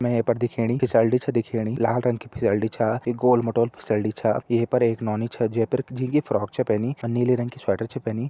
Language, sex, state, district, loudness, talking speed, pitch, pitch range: Hindi, male, Uttarakhand, Tehri Garhwal, -23 LUFS, 230 wpm, 115 Hz, 115-125 Hz